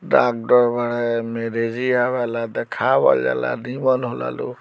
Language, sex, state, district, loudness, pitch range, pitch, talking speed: Bhojpuri, male, Bihar, Muzaffarpur, -20 LUFS, 115-125 Hz, 120 Hz, 130 wpm